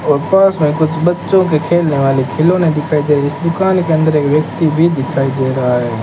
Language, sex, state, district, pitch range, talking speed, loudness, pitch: Hindi, male, Rajasthan, Bikaner, 140-170 Hz, 230 wpm, -13 LUFS, 155 Hz